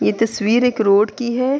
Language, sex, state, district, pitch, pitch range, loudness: Urdu, female, Andhra Pradesh, Anantapur, 225 Hz, 205-250 Hz, -17 LUFS